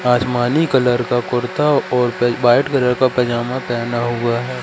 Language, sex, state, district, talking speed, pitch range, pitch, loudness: Hindi, male, Madhya Pradesh, Katni, 170 wpm, 120-130 Hz, 125 Hz, -17 LUFS